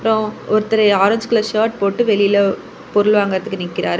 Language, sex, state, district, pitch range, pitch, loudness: Tamil, female, Tamil Nadu, Kanyakumari, 200-220 Hz, 210 Hz, -16 LUFS